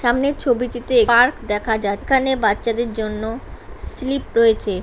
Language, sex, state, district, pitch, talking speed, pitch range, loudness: Bengali, male, West Bengal, Jhargram, 235 Hz, 125 wpm, 220-260 Hz, -19 LUFS